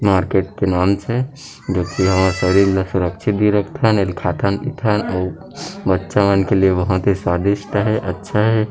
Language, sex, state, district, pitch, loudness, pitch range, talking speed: Chhattisgarhi, male, Chhattisgarh, Rajnandgaon, 95 Hz, -18 LUFS, 95-105 Hz, 180 wpm